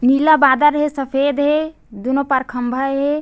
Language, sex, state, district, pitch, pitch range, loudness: Chhattisgarhi, female, Chhattisgarh, Bastar, 275 Hz, 265-295 Hz, -16 LUFS